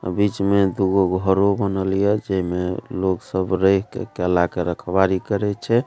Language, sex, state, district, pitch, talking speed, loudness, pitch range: Maithili, male, Bihar, Supaul, 95 Hz, 185 wpm, -20 LUFS, 90-100 Hz